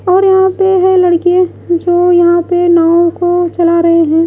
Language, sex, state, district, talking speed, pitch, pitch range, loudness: Hindi, female, Odisha, Malkangiri, 185 wpm, 350 Hz, 340-365 Hz, -10 LUFS